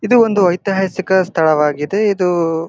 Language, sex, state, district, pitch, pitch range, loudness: Kannada, male, Karnataka, Gulbarga, 185 Hz, 165-195 Hz, -15 LUFS